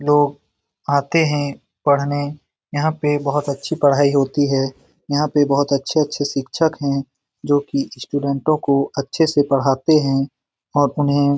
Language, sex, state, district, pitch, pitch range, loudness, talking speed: Hindi, male, Bihar, Lakhisarai, 145 Hz, 140-145 Hz, -19 LUFS, 150 wpm